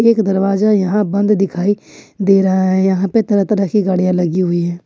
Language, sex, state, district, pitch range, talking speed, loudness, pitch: Hindi, female, Jharkhand, Ranchi, 185-205 Hz, 210 wpm, -15 LUFS, 195 Hz